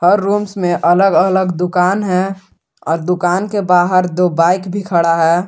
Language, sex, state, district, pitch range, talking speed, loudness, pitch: Hindi, male, Jharkhand, Garhwa, 175-195 Hz, 175 wpm, -14 LUFS, 180 Hz